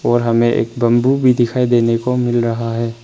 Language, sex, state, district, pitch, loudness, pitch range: Hindi, male, Arunachal Pradesh, Papum Pare, 120 Hz, -15 LUFS, 115-125 Hz